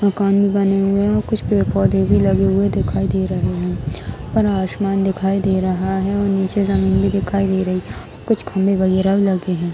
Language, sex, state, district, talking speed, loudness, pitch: Hindi, female, Bihar, Darbhanga, 220 wpm, -18 LUFS, 190 Hz